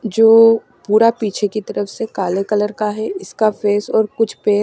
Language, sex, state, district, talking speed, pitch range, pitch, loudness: Hindi, female, Maharashtra, Mumbai Suburban, 205 wpm, 205-225 Hz, 215 Hz, -16 LUFS